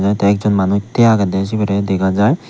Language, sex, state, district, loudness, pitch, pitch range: Chakma, male, Tripura, Unakoti, -15 LUFS, 100 Hz, 95-105 Hz